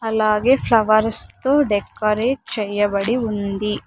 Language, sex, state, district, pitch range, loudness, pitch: Telugu, female, Andhra Pradesh, Sri Satya Sai, 205-230 Hz, -19 LUFS, 215 Hz